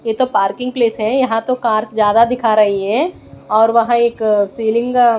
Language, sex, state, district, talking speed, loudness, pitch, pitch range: Hindi, female, Odisha, Malkangiri, 195 wpm, -15 LUFS, 225 Hz, 215-240 Hz